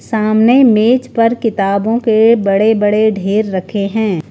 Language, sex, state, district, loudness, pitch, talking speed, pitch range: Hindi, female, Uttar Pradesh, Lucknow, -12 LUFS, 220 Hz, 125 wpm, 200-230 Hz